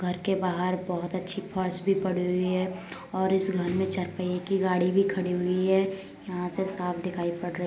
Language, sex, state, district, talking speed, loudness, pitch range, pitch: Hindi, female, Uttar Pradesh, Deoria, 225 wpm, -28 LUFS, 180-190 Hz, 185 Hz